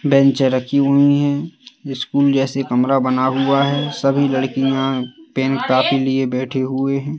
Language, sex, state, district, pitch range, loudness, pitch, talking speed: Hindi, male, Madhya Pradesh, Katni, 130-140 Hz, -17 LUFS, 135 Hz, 150 wpm